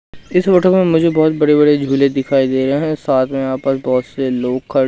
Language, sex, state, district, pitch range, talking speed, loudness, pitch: Hindi, male, Madhya Pradesh, Katni, 130-155 Hz, 245 wpm, -15 LUFS, 135 Hz